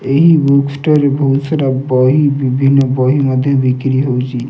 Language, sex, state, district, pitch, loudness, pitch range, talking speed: Odia, male, Odisha, Nuapada, 135 Hz, -12 LUFS, 130-140 Hz, 145 wpm